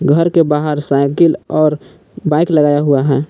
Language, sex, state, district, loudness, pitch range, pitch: Hindi, male, Jharkhand, Palamu, -13 LUFS, 145-160 Hz, 150 Hz